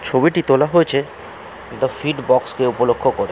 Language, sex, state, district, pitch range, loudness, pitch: Bengali, male, West Bengal, Jalpaiguri, 125-145 Hz, -17 LUFS, 130 Hz